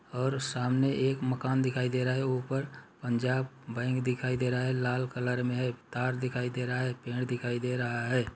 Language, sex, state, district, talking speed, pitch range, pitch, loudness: Hindi, male, Uttar Pradesh, Muzaffarnagar, 180 wpm, 125-130 Hz, 125 Hz, -31 LUFS